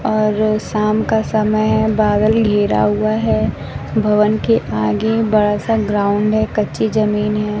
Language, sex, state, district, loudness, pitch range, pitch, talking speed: Hindi, female, Bihar, West Champaran, -16 LUFS, 210-215 Hz, 215 Hz, 150 wpm